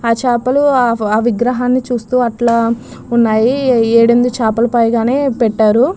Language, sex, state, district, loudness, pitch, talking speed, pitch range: Telugu, female, Andhra Pradesh, Krishna, -13 LUFS, 235 Hz, 120 wpm, 230-250 Hz